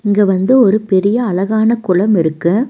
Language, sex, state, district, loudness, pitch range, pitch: Tamil, female, Tamil Nadu, Nilgiris, -13 LUFS, 185-225 Hz, 205 Hz